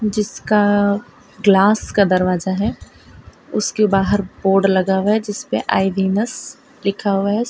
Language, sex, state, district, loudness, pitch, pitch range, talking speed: Hindi, female, Gujarat, Valsad, -17 LUFS, 205 Hz, 195-215 Hz, 160 wpm